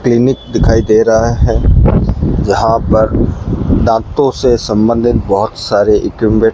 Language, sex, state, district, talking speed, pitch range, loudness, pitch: Hindi, male, Rajasthan, Bikaner, 130 wpm, 105-115 Hz, -12 LUFS, 110 Hz